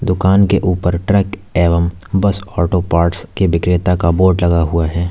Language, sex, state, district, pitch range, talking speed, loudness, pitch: Hindi, male, Uttar Pradesh, Lalitpur, 85-95 Hz, 175 wpm, -15 LUFS, 90 Hz